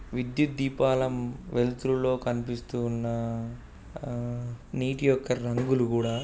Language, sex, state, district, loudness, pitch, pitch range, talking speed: Telugu, male, Andhra Pradesh, Guntur, -29 LUFS, 125 Hz, 120-130 Hz, 75 wpm